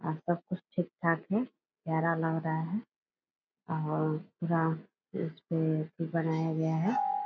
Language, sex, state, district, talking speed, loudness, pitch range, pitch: Hindi, female, Bihar, Purnia, 140 wpm, -33 LUFS, 160-185 Hz, 165 Hz